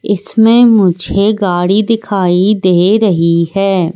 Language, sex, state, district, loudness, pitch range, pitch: Hindi, female, Madhya Pradesh, Katni, -11 LUFS, 180-210 Hz, 195 Hz